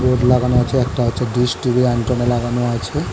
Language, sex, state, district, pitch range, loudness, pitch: Bengali, male, West Bengal, Dakshin Dinajpur, 120-125 Hz, -17 LUFS, 125 Hz